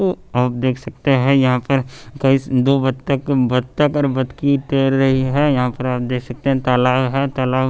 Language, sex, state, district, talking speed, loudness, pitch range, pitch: Hindi, male, Bihar, West Champaran, 195 wpm, -17 LUFS, 125-140 Hz, 130 Hz